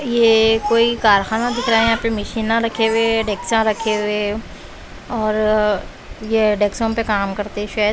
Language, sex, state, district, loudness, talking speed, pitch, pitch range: Hindi, female, Bihar, West Champaran, -17 LUFS, 165 wpm, 220 Hz, 210-230 Hz